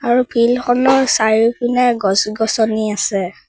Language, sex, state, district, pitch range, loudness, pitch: Assamese, female, Assam, Sonitpur, 215-245 Hz, -15 LUFS, 230 Hz